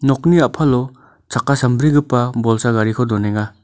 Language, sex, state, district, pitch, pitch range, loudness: Garo, male, Meghalaya, North Garo Hills, 125 Hz, 115-140 Hz, -16 LUFS